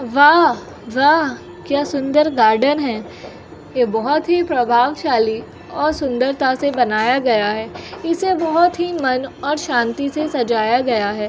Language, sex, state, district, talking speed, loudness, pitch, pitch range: Hindi, female, Uttar Pradesh, Jyotiba Phule Nagar, 140 wpm, -17 LUFS, 265 Hz, 235-300 Hz